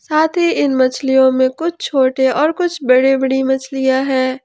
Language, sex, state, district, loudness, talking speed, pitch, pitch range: Hindi, male, Jharkhand, Ranchi, -15 LUFS, 175 wpm, 265 Hz, 260-305 Hz